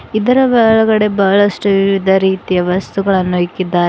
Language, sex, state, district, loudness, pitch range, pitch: Kannada, female, Karnataka, Bidar, -13 LUFS, 185-215 Hz, 195 Hz